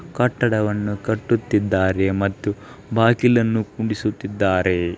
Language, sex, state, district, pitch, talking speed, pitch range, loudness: Kannada, male, Karnataka, Dharwad, 105 Hz, 60 wpm, 100-115 Hz, -20 LUFS